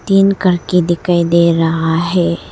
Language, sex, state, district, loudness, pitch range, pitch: Hindi, female, Arunachal Pradesh, Lower Dibang Valley, -13 LUFS, 165-180 Hz, 170 Hz